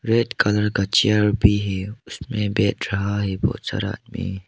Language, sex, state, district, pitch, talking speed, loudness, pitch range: Hindi, male, Arunachal Pradesh, Lower Dibang Valley, 105 Hz, 175 wpm, -21 LUFS, 100-110 Hz